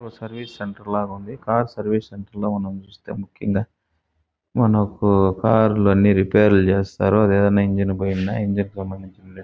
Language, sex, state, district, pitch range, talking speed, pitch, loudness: Telugu, male, Andhra Pradesh, Chittoor, 95-105 Hz, 155 wpm, 100 Hz, -19 LUFS